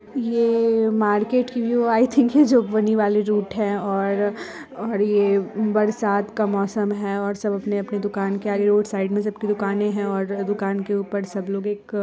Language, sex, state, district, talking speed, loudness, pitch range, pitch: Hindi, female, Bihar, Purnia, 175 wpm, -21 LUFS, 200-215 Hz, 205 Hz